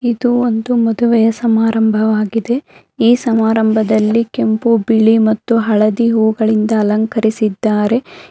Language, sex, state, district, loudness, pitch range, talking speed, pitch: Kannada, female, Karnataka, Bangalore, -14 LUFS, 220-235 Hz, 85 wpm, 225 Hz